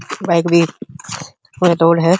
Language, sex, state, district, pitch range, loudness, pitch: Hindi, male, Uttar Pradesh, Hamirpur, 165-175 Hz, -15 LUFS, 170 Hz